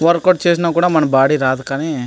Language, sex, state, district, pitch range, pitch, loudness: Telugu, male, Andhra Pradesh, Anantapur, 135-170 Hz, 160 Hz, -15 LUFS